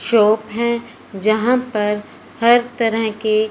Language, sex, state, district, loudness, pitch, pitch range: Hindi, male, Punjab, Fazilka, -18 LUFS, 225 Hz, 215-235 Hz